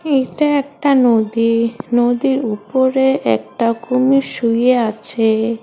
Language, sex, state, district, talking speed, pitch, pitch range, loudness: Bengali, female, West Bengal, Cooch Behar, 95 wpm, 245 Hz, 230-265 Hz, -16 LUFS